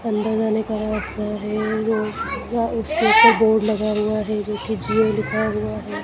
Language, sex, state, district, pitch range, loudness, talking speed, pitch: Hindi, female, Madhya Pradesh, Dhar, 210-220 Hz, -20 LUFS, 200 wpm, 215 Hz